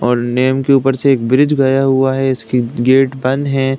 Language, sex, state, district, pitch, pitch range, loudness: Hindi, male, Uttar Pradesh, Deoria, 135 Hz, 130-135 Hz, -13 LUFS